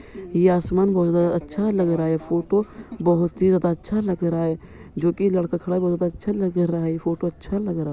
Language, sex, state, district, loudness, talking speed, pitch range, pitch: Hindi, male, Uttar Pradesh, Jyotiba Phule Nagar, -22 LUFS, 235 wpm, 170-190 Hz, 175 Hz